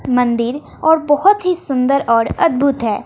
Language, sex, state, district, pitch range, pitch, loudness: Hindi, female, Bihar, West Champaran, 245-320 Hz, 275 Hz, -15 LUFS